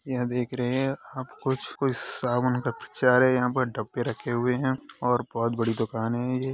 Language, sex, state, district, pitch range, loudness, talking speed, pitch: Hindi, male, Uttar Pradesh, Hamirpur, 120-130 Hz, -26 LUFS, 220 wpm, 125 Hz